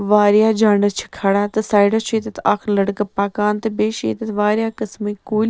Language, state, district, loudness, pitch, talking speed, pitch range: Kashmiri, Punjab, Kapurthala, -18 LUFS, 210 Hz, 185 wpm, 205-215 Hz